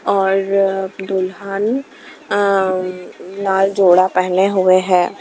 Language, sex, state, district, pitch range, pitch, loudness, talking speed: Hindi, female, Himachal Pradesh, Shimla, 185-195 Hz, 190 Hz, -16 LUFS, 90 wpm